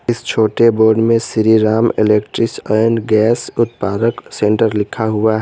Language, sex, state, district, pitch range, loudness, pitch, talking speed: Hindi, male, Jharkhand, Garhwa, 110-115 Hz, -14 LUFS, 110 Hz, 145 wpm